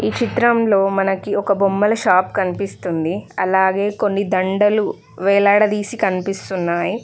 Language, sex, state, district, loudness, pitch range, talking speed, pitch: Telugu, female, Telangana, Mahabubabad, -17 LUFS, 190-205 Hz, 100 wpm, 195 Hz